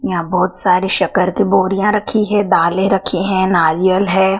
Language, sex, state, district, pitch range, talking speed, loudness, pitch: Hindi, female, Madhya Pradesh, Dhar, 185-195 Hz, 175 wpm, -14 LUFS, 190 Hz